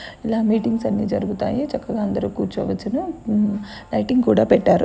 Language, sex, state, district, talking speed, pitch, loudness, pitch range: Telugu, female, Andhra Pradesh, Guntur, 135 wpm, 225 Hz, -21 LUFS, 215-255 Hz